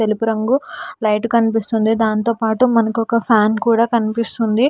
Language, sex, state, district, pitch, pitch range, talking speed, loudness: Telugu, female, Telangana, Hyderabad, 225 Hz, 220-235 Hz, 130 wpm, -16 LUFS